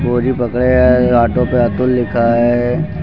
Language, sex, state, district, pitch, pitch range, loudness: Hindi, male, Uttar Pradesh, Lucknow, 125 Hz, 120-125 Hz, -13 LUFS